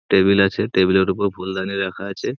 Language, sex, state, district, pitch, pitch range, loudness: Bengali, male, West Bengal, Purulia, 95 Hz, 95-100 Hz, -19 LUFS